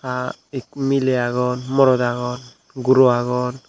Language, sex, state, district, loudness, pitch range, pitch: Chakma, male, Tripura, Dhalai, -19 LUFS, 125-130 Hz, 125 Hz